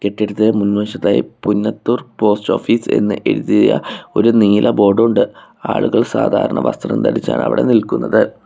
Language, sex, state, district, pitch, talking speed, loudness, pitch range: Malayalam, male, Kerala, Kollam, 105 Hz, 120 wpm, -15 LUFS, 105-115 Hz